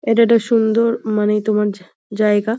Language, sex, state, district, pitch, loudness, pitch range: Bengali, female, West Bengal, Jhargram, 215 Hz, -16 LUFS, 210-230 Hz